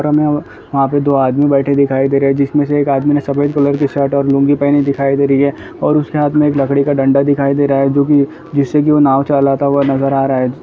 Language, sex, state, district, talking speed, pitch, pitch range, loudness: Hindi, male, Bihar, Gaya, 275 wpm, 140 Hz, 140-145 Hz, -13 LUFS